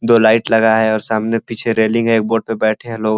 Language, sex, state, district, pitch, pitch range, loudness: Hindi, male, Uttar Pradesh, Ghazipur, 110 Hz, 110-115 Hz, -15 LUFS